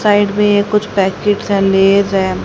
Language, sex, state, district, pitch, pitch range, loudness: Hindi, female, Haryana, Rohtak, 200 Hz, 195-205 Hz, -13 LUFS